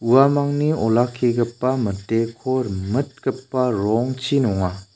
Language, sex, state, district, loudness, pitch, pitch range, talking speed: Garo, male, Meghalaya, South Garo Hills, -21 LUFS, 125 Hz, 115-130 Hz, 75 wpm